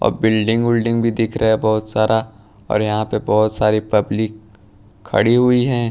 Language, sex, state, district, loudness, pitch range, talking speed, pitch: Hindi, male, Punjab, Pathankot, -17 LUFS, 105-115 Hz, 185 wpm, 110 Hz